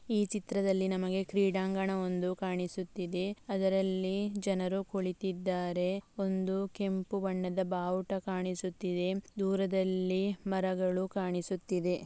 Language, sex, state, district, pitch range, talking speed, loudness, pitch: Kannada, female, Karnataka, Dakshina Kannada, 185-195 Hz, 90 wpm, -34 LUFS, 190 Hz